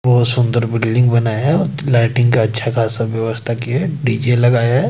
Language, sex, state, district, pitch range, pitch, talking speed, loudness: Hindi, male, Madhya Pradesh, Bhopal, 115-125 Hz, 120 Hz, 185 wpm, -15 LUFS